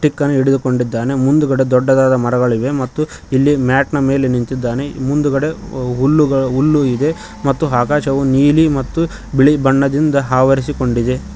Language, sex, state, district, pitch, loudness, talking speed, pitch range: Kannada, male, Karnataka, Koppal, 135 Hz, -15 LUFS, 120 wpm, 130-145 Hz